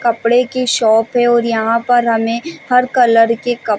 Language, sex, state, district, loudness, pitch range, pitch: Hindi, female, Chhattisgarh, Bilaspur, -13 LUFS, 230-245 Hz, 235 Hz